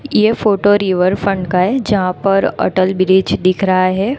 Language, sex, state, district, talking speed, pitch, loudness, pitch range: Hindi, female, Gujarat, Gandhinagar, 185 wpm, 195 Hz, -14 LUFS, 185-205 Hz